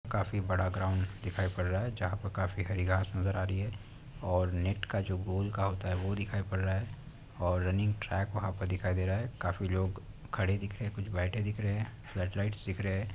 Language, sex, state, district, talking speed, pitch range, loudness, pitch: Hindi, male, Uttar Pradesh, Deoria, 245 wpm, 95-105 Hz, -34 LUFS, 95 Hz